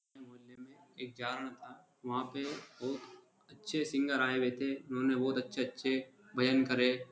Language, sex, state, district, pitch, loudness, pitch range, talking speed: Hindi, male, Uttar Pradesh, Jyotiba Phule Nagar, 130 Hz, -35 LUFS, 125-135 Hz, 160 wpm